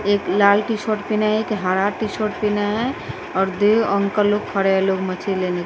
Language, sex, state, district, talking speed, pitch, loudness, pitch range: Hindi, female, Bihar, West Champaran, 235 wpm, 205 Hz, -20 LUFS, 195-215 Hz